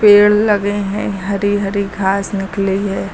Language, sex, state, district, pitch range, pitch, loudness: Hindi, female, Uttar Pradesh, Lucknow, 195-205 Hz, 200 Hz, -16 LUFS